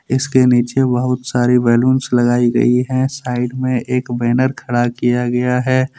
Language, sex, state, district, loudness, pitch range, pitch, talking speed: Hindi, male, Jharkhand, Deoghar, -15 LUFS, 120-130 Hz, 125 Hz, 160 wpm